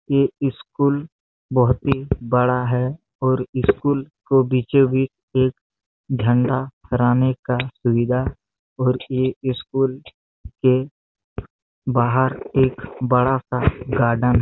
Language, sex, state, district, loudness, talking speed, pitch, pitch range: Hindi, male, Chhattisgarh, Bastar, -20 LUFS, 110 wpm, 130 Hz, 125-135 Hz